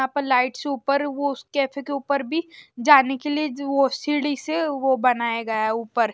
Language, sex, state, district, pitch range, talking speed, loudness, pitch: Hindi, male, Maharashtra, Washim, 255-290 Hz, 215 wpm, -22 LUFS, 275 Hz